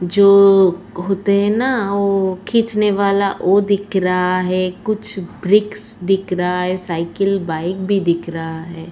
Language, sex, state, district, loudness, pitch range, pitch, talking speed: Hindi, female, Uttar Pradesh, Etah, -16 LUFS, 180-200 Hz, 195 Hz, 150 wpm